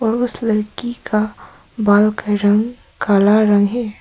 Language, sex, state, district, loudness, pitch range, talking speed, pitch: Hindi, female, Arunachal Pradesh, Papum Pare, -16 LUFS, 205-230 Hz, 135 wpm, 215 Hz